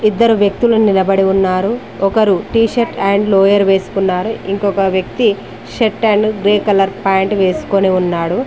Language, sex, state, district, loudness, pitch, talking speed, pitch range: Telugu, female, Telangana, Mahabubabad, -13 LUFS, 200 Hz, 135 wpm, 195-215 Hz